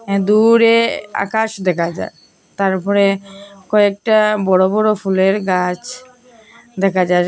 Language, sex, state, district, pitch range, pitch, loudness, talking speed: Bengali, female, Assam, Hailakandi, 190-220 Hz, 200 Hz, -15 LUFS, 105 wpm